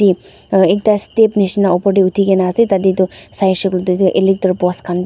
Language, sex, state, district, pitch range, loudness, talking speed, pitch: Nagamese, female, Nagaland, Dimapur, 185-200 Hz, -14 LUFS, 190 wpm, 190 Hz